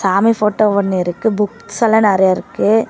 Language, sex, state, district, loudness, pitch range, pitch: Tamil, female, Tamil Nadu, Namakkal, -15 LUFS, 190-220 Hz, 210 Hz